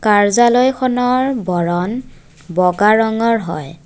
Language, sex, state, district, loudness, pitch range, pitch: Assamese, female, Assam, Kamrup Metropolitan, -15 LUFS, 175-240 Hz, 210 Hz